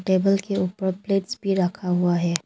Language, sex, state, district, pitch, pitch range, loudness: Hindi, female, Arunachal Pradesh, Longding, 190 Hz, 180-195 Hz, -23 LUFS